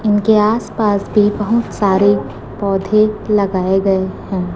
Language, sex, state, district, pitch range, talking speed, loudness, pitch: Hindi, female, Chhattisgarh, Raipur, 190-215 Hz, 130 wpm, -15 LUFS, 205 Hz